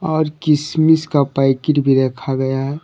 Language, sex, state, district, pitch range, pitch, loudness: Hindi, male, Jharkhand, Deoghar, 135-155 Hz, 145 Hz, -16 LUFS